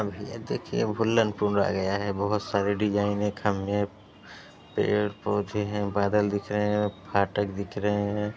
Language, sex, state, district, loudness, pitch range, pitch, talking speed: Hindi, male, Uttar Pradesh, Varanasi, -27 LUFS, 100-105 Hz, 105 Hz, 170 wpm